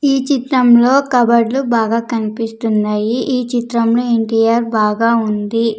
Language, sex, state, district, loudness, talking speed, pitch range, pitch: Telugu, female, Andhra Pradesh, Sri Satya Sai, -14 LUFS, 105 wpm, 225-245 Hz, 230 Hz